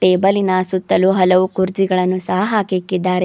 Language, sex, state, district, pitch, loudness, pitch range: Kannada, female, Karnataka, Bidar, 185 Hz, -16 LUFS, 185-190 Hz